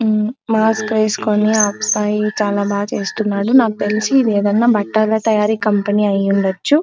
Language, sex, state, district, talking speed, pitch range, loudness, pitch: Telugu, female, Andhra Pradesh, Anantapur, 130 wpm, 205-220 Hz, -16 LUFS, 215 Hz